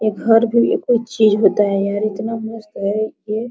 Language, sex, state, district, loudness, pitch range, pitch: Hindi, female, Bihar, Araria, -17 LUFS, 210-225 Hz, 220 Hz